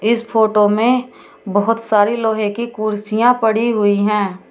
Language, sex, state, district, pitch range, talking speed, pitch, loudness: Hindi, female, Uttar Pradesh, Shamli, 210-230 Hz, 145 wpm, 220 Hz, -16 LUFS